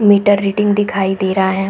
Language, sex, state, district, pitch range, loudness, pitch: Hindi, female, Chhattisgarh, Raigarh, 190-205 Hz, -14 LUFS, 200 Hz